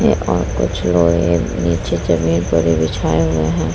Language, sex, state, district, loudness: Hindi, female, Uttar Pradesh, Muzaffarnagar, -16 LUFS